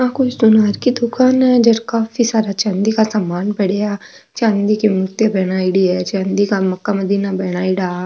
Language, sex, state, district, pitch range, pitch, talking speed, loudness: Marwari, female, Rajasthan, Nagaur, 190-225 Hz, 205 Hz, 185 wpm, -16 LUFS